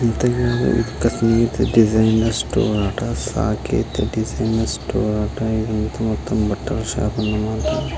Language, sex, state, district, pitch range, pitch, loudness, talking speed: Telugu, male, Andhra Pradesh, Guntur, 105-115 Hz, 110 Hz, -20 LUFS, 120 wpm